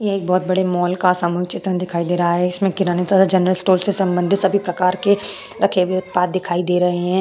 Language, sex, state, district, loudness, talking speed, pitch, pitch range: Hindi, female, Uttar Pradesh, Hamirpur, -18 LUFS, 240 wpm, 185 Hz, 180-190 Hz